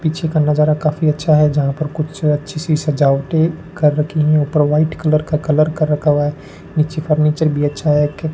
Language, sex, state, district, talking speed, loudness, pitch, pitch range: Hindi, male, Rajasthan, Bikaner, 210 wpm, -16 LUFS, 155 Hz, 150-155 Hz